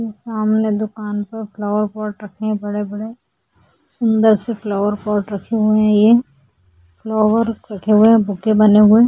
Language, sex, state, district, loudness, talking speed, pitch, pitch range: Hindi, female, Goa, North and South Goa, -17 LUFS, 145 wpm, 215 Hz, 205-220 Hz